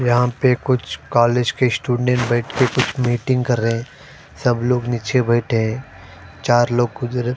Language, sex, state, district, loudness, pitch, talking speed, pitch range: Hindi, male, Punjab, Fazilka, -19 LUFS, 120 Hz, 170 wpm, 120-125 Hz